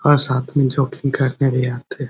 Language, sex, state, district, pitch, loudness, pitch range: Hindi, male, Bihar, Muzaffarpur, 135 Hz, -19 LUFS, 130-140 Hz